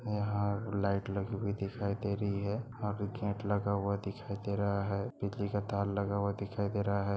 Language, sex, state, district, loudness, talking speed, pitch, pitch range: Hindi, male, Chhattisgarh, Bastar, -35 LUFS, 215 wpm, 100 Hz, 100-105 Hz